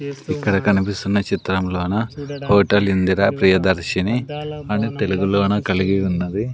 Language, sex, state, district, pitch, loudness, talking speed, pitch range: Telugu, male, Andhra Pradesh, Sri Satya Sai, 100 Hz, -19 LUFS, 110 wpm, 95-115 Hz